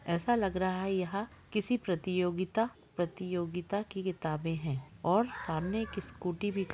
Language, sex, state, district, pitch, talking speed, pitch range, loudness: Hindi, female, Jharkhand, Jamtara, 185 Hz, 140 wpm, 175-205 Hz, -34 LUFS